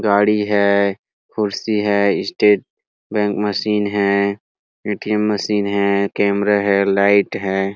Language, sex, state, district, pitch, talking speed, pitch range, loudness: Hindi, male, Chhattisgarh, Rajnandgaon, 100 Hz, 115 wpm, 100-105 Hz, -17 LUFS